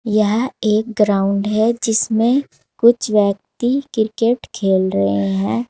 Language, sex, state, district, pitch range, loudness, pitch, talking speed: Hindi, female, Uttar Pradesh, Saharanpur, 195-230 Hz, -17 LUFS, 215 Hz, 115 wpm